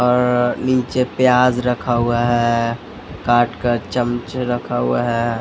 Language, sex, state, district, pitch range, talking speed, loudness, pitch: Hindi, male, Bihar, Patna, 120-125 Hz, 175 wpm, -18 LUFS, 120 Hz